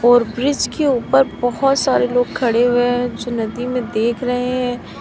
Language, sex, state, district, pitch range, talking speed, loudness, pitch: Hindi, female, Uttar Pradesh, Lalitpur, 240-255 Hz, 190 wpm, -17 LUFS, 245 Hz